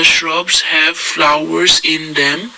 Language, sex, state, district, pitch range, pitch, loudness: English, male, Assam, Kamrup Metropolitan, 120-155 Hz, 145 Hz, -11 LUFS